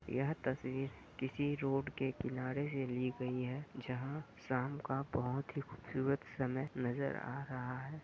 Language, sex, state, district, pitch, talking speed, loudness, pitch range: Hindi, female, Bihar, Purnia, 130 Hz, 155 wpm, -40 LUFS, 125-140 Hz